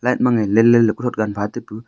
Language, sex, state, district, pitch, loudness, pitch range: Wancho, male, Arunachal Pradesh, Longding, 115 Hz, -17 LUFS, 110-120 Hz